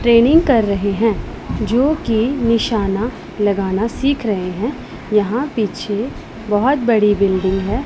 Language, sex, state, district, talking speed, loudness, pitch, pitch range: Hindi, female, Punjab, Pathankot, 120 wpm, -17 LUFS, 220 Hz, 205-240 Hz